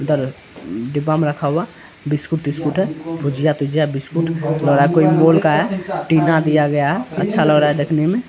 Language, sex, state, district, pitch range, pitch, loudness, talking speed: Hindi, male, Bihar, Araria, 145-165 Hz, 155 Hz, -17 LUFS, 150 wpm